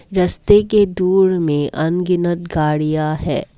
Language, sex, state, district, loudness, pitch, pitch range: Hindi, female, Assam, Kamrup Metropolitan, -16 LUFS, 175 Hz, 155-190 Hz